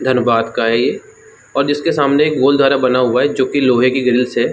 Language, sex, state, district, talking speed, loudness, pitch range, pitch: Hindi, male, Jharkhand, Jamtara, 210 wpm, -14 LUFS, 125-145 Hz, 130 Hz